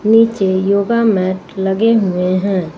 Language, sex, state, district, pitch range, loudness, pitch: Hindi, female, Uttar Pradesh, Lucknow, 185-220 Hz, -14 LUFS, 195 Hz